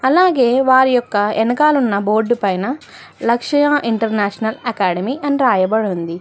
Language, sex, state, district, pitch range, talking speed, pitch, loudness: Telugu, female, Telangana, Hyderabad, 205-260 Hz, 125 wpm, 235 Hz, -16 LUFS